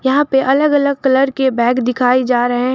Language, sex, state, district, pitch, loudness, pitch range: Hindi, female, Jharkhand, Garhwa, 265 Hz, -14 LUFS, 250-270 Hz